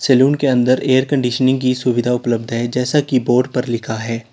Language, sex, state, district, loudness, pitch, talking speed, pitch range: Hindi, male, Uttar Pradesh, Lalitpur, -16 LUFS, 125 Hz, 210 wpm, 120-130 Hz